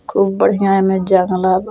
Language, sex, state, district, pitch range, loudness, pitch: Bhojpuri, female, Bihar, Muzaffarpur, 185-195 Hz, -14 LUFS, 190 Hz